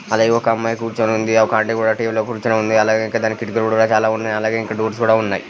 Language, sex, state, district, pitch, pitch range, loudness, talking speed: Telugu, male, Andhra Pradesh, Guntur, 110 Hz, 110-115 Hz, -17 LUFS, 230 wpm